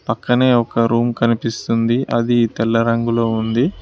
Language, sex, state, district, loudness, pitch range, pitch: Telugu, male, Telangana, Mahabubabad, -17 LUFS, 115-120 Hz, 115 Hz